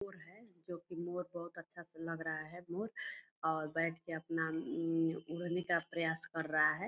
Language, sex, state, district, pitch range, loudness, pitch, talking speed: Hindi, female, Bihar, Purnia, 160-175 Hz, -39 LUFS, 170 Hz, 200 wpm